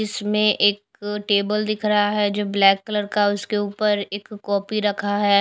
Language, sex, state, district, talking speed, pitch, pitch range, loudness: Hindi, female, Chhattisgarh, Raipur, 175 wpm, 205 Hz, 205-210 Hz, -21 LUFS